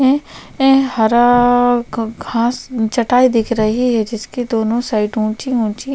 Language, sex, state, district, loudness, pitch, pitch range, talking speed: Hindi, female, Chhattisgarh, Korba, -15 LUFS, 240 Hz, 225-250 Hz, 110 wpm